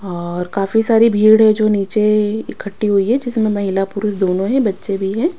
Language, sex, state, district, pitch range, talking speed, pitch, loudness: Hindi, female, Punjab, Kapurthala, 195-220 Hz, 200 wpm, 210 Hz, -16 LUFS